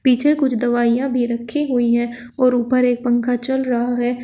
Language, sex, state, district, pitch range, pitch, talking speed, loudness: Hindi, female, Uttar Pradesh, Shamli, 240-255 Hz, 245 Hz, 200 wpm, -18 LUFS